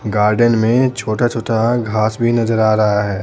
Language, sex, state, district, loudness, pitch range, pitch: Hindi, male, Bihar, Patna, -15 LUFS, 110-120 Hz, 110 Hz